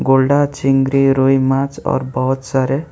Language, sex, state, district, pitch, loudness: Hindi, male, West Bengal, Alipurduar, 135 Hz, -15 LUFS